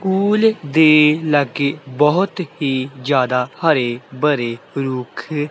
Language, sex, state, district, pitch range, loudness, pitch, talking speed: Punjabi, male, Punjab, Kapurthala, 130-155 Hz, -17 LUFS, 145 Hz, 100 wpm